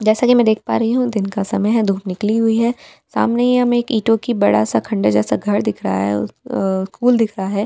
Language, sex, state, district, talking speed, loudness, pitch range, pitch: Hindi, female, Delhi, New Delhi, 260 wpm, -17 LUFS, 190-235 Hz, 215 Hz